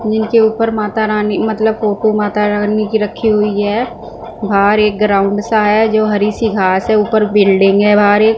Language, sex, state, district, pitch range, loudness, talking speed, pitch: Hindi, female, Punjab, Fazilka, 205-220 Hz, -13 LUFS, 195 wpm, 215 Hz